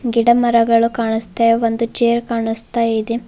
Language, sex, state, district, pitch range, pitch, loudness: Kannada, female, Karnataka, Bidar, 230-235 Hz, 230 Hz, -16 LUFS